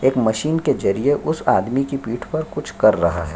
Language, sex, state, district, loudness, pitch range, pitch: Hindi, male, Chhattisgarh, Sukma, -19 LUFS, 110-150 Hz, 130 Hz